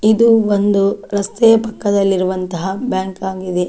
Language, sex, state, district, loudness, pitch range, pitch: Kannada, female, Karnataka, Dakshina Kannada, -15 LUFS, 190-220 Hz, 200 Hz